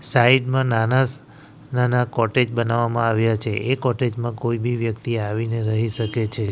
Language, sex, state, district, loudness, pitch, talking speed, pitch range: Gujarati, male, Gujarat, Valsad, -21 LUFS, 120 Hz, 165 wpm, 115-125 Hz